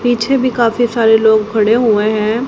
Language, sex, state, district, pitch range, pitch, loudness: Hindi, female, Haryana, Rohtak, 220-240 Hz, 225 Hz, -12 LUFS